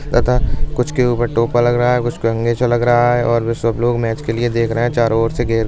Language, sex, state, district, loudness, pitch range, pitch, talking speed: Bundeli, male, Uttar Pradesh, Budaun, -16 LUFS, 115-120 Hz, 120 Hz, 285 wpm